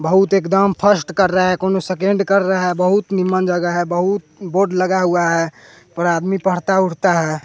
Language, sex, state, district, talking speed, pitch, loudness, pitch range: Hindi, male, Bihar, West Champaran, 200 wpm, 185 Hz, -17 LUFS, 175-195 Hz